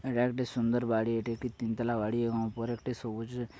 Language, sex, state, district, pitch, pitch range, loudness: Bengali, male, West Bengal, Paschim Medinipur, 115 Hz, 115-120 Hz, -33 LUFS